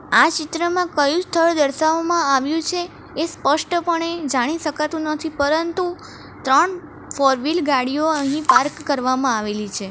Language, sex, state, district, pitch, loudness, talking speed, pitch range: Gujarati, female, Gujarat, Valsad, 310 Hz, -19 LUFS, 125 wpm, 280-335 Hz